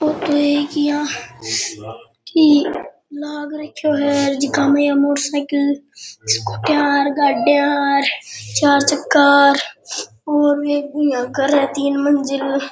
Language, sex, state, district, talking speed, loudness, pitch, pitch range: Rajasthani, male, Rajasthan, Churu, 80 wpm, -17 LUFS, 285 Hz, 280-290 Hz